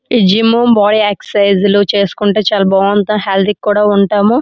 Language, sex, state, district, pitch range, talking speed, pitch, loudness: Telugu, female, Andhra Pradesh, Srikakulam, 200-210 Hz, 135 wpm, 205 Hz, -11 LUFS